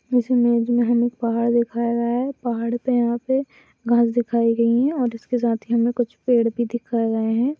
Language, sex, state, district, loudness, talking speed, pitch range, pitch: Hindi, female, Bihar, Saharsa, -21 LUFS, 215 wpm, 235-245 Hz, 235 Hz